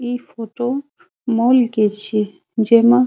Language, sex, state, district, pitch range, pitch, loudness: Maithili, female, Bihar, Saharsa, 220-245 Hz, 235 Hz, -17 LUFS